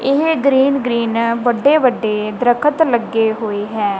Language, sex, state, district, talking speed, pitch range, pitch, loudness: Punjabi, female, Punjab, Kapurthala, 135 wpm, 220-275 Hz, 240 Hz, -15 LUFS